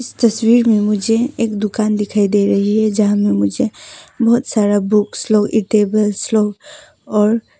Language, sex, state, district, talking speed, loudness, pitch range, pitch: Hindi, female, Arunachal Pradesh, Papum Pare, 165 wpm, -15 LUFS, 205-230 Hz, 215 Hz